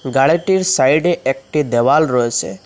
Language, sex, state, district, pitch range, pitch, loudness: Bengali, male, Assam, Hailakandi, 130-170 Hz, 145 Hz, -15 LUFS